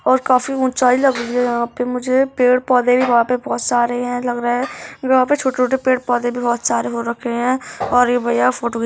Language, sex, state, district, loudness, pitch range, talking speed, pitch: Hindi, female, Bihar, Darbhanga, -17 LUFS, 240-255 Hz, 235 wpm, 245 Hz